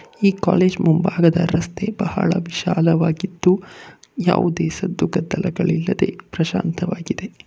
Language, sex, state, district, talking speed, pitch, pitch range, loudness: Kannada, male, Karnataka, Bangalore, 80 wpm, 180 Hz, 170-190 Hz, -19 LUFS